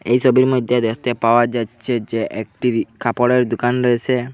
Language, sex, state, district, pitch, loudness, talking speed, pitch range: Bengali, male, Assam, Hailakandi, 120 Hz, -18 LUFS, 150 wpm, 115-125 Hz